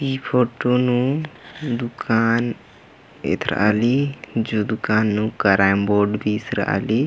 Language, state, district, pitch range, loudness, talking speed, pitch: Kurukh, Chhattisgarh, Jashpur, 105-125 Hz, -20 LUFS, 95 wpm, 115 Hz